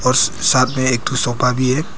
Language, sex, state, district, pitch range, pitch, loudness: Hindi, male, Arunachal Pradesh, Papum Pare, 125-130 Hz, 130 Hz, -16 LUFS